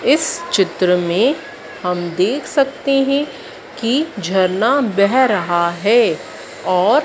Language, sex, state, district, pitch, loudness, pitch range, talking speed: Hindi, female, Madhya Pradesh, Dhar, 225 Hz, -17 LUFS, 185-280 Hz, 110 wpm